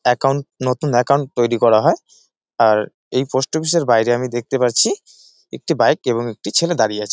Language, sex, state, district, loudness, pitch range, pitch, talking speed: Bengali, male, West Bengal, Jalpaiguri, -17 LUFS, 120-140 Hz, 125 Hz, 185 wpm